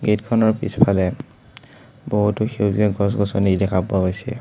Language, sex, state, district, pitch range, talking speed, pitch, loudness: Assamese, male, Assam, Sonitpur, 100-120 Hz, 120 wpm, 105 Hz, -19 LUFS